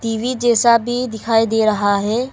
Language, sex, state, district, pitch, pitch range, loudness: Hindi, female, Arunachal Pradesh, Longding, 230 Hz, 220-240 Hz, -16 LUFS